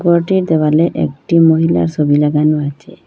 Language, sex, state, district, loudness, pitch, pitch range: Bengali, female, Assam, Hailakandi, -13 LUFS, 155 Hz, 145-165 Hz